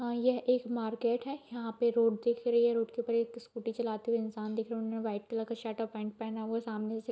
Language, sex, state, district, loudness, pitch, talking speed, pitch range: Hindi, female, Bihar, Bhagalpur, -34 LUFS, 230 Hz, 310 wpm, 225-235 Hz